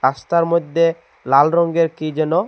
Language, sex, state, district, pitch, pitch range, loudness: Bengali, male, Assam, Hailakandi, 165 Hz, 155-170 Hz, -17 LUFS